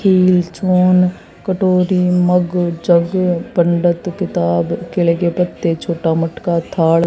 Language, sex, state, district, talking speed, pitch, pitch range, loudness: Hindi, female, Haryana, Jhajjar, 95 wpm, 175 Hz, 170-180 Hz, -15 LUFS